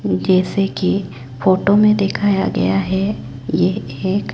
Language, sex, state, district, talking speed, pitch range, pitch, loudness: Hindi, male, Chhattisgarh, Raipur, 125 wpm, 185-200 Hz, 190 Hz, -17 LUFS